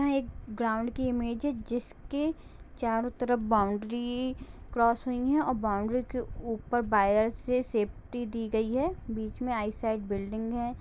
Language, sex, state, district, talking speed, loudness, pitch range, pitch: Hindi, female, Jharkhand, Jamtara, 150 wpm, -31 LUFS, 220-250 Hz, 235 Hz